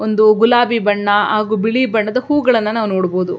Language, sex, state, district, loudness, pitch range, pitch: Kannada, female, Karnataka, Belgaum, -14 LUFS, 210-240 Hz, 215 Hz